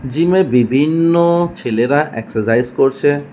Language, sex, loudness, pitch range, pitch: Bengali, male, -14 LUFS, 120-165 Hz, 145 Hz